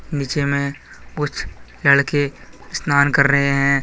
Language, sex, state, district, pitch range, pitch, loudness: Hindi, male, Jharkhand, Deoghar, 140-145 Hz, 140 Hz, -18 LUFS